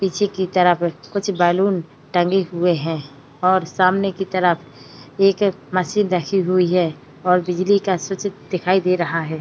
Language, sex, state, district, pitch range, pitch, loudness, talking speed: Hindi, female, Uttar Pradesh, Hamirpur, 165-190 Hz, 180 Hz, -19 LUFS, 160 wpm